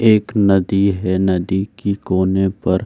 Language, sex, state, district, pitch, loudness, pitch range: Hindi, male, Bihar, Saran, 95 Hz, -17 LUFS, 95-100 Hz